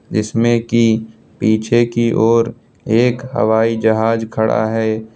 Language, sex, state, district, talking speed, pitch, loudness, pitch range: Hindi, male, Uttar Pradesh, Lucknow, 115 wpm, 115 Hz, -16 LUFS, 110-115 Hz